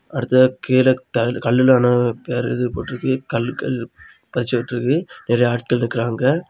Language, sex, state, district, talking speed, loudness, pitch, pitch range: Tamil, male, Tamil Nadu, Kanyakumari, 120 wpm, -19 LUFS, 125 Hz, 120-130 Hz